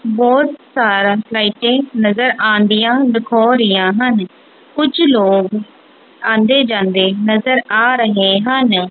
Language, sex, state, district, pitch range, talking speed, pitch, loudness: Punjabi, female, Punjab, Kapurthala, 205-250 Hz, 115 wpm, 225 Hz, -13 LUFS